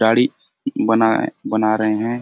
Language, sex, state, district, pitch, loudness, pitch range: Hindi, male, Chhattisgarh, Bastar, 110 Hz, -18 LUFS, 110-120 Hz